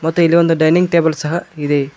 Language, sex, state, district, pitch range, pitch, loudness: Kannada, male, Karnataka, Koppal, 155-170 Hz, 160 Hz, -14 LUFS